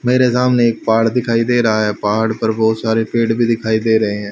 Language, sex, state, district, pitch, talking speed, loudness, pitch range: Hindi, male, Haryana, Charkhi Dadri, 115 Hz, 250 wpm, -15 LUFS, 110-120 Hz